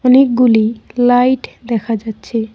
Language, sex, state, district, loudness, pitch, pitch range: Bengali, female, West Bengal, Cooch Behar, -14 LUFS, 235 Hz, 225-250 Hz